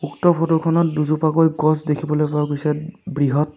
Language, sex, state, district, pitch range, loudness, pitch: Assamese, male, Assam, Sonitpur, 150-165 Hz, -19 LUFS, 155 Hz